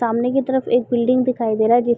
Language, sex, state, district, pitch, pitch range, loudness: Hindi, female, Uttar Pradesh, Gorakhpur, 240 Hz, 235-255 Hz, -18 LUFS